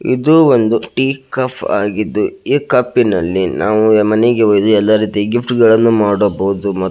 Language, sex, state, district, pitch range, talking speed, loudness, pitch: Kannada, male, Karnataka, Belgaum, 100-120 Hz, 140 wpm, -13 LUFS, 110 Hz